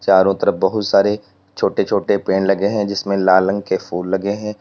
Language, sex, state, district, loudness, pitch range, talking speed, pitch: Hindi, male, Uttar Pradesh, Lalitpur, -17 LUFS, 95-100 Hz, 210 wpm, 100 Hz